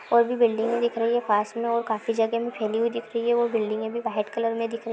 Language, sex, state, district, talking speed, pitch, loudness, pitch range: Hindi, female, Uttarakhand, Tehri Garhwal, 315 wpm, 230 Hz, -25 LUFS, 225-235 Hz